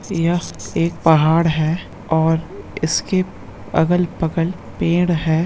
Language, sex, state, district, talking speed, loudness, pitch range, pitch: Hindi, male, Bihar, Bhagalpur, 100 wpm, -19 LUFS, 160-175 Hz, 165 Hz